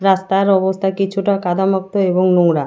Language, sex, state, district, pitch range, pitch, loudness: Bengali, female, West Bengal, Alipurduar, 185-195 Hz, 190 Hz, -16 LUFS